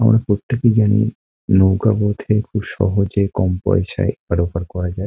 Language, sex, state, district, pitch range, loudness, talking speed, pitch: Bengali, male, West Bengal, Kolkata, 95-110 Hz, -18 LUFS, 165 wpm, 100 Hz